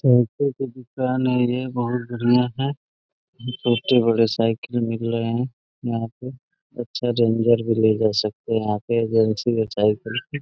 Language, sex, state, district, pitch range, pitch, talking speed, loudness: Hindi, male, Uttar Pradesh, Deoria, 115-125 Hz, 120 Hz, 145 wpm, -22 LUFS